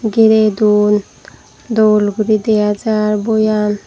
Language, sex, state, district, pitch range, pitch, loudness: Chakma, female, Tripura, Dhalai, 210-220 Hz, 215 Hz, -13 LUFS